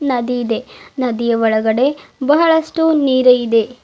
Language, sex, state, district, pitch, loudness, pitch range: Kannada, female, Karnataka, Bidar, 250 Hz, -15 LUFS, 230-290 Hz